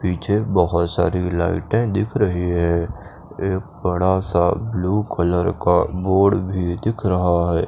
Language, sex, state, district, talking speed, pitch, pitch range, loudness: Hindi, male, Chandigarh, Chandigarh, 140 wpm, 90 Hz, 85-100 Hz, -20 LUFS